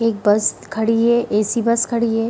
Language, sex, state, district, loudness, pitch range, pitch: Hindi, female, Bihar, Darbhanga, -18 LUFS, 215-235 Hz, 230 Hz